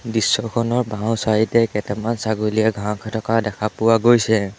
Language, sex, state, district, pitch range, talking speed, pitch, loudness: Assamese, male, Assam, Sonitpur, 105-115 Hz, 145 wpm, 110 Hz, -19 LUFS